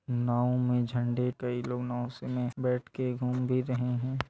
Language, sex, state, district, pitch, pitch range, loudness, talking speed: Hindi, male, Bihar, Purnia, 125 Hz, 120-125 Hz, -31 LUFS, 195 wpm